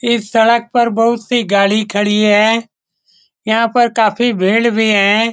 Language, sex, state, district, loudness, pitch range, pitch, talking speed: Hindi, male, Bihar, Saran, -13 LUFS, 210-235 Hz, 225 Hz, 170 wpm